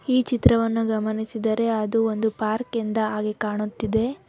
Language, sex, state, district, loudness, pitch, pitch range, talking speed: Kannada, female, Karnataka, Bangalore, -23 LUFS, 220 Hz, 215-230 Hz, 110 wpm